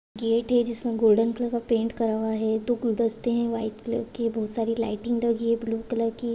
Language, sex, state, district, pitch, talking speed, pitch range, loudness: Hindi, female, Maharashtra, Dhule, 230 Hz, 225 wpm, 225-235 Hz, -26 LUFS